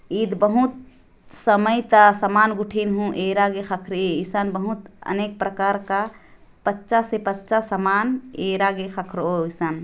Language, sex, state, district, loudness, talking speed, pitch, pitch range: Sadri, female, Chhattisgarh, Jashpur, -21 LUFS, 145 wpm, 200 Hz, 190-215 Hz